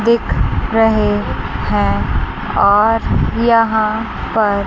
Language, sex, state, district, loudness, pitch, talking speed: Hindi, female, Chandigarh, Chandigarh, -15 LUFS, 205 Hz, 75 wpm